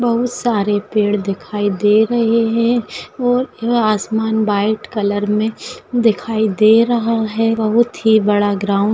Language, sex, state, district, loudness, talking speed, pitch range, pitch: Hindi, female, Maharashtra, Pune, -16 LUFS, 140 wpm, 210-230 Hz, 220 Hz